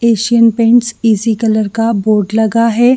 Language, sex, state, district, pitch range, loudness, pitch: Hindi, female, Jharkhand, Jamtara, 220-230 Hz, -12 LUFS, 230 Hz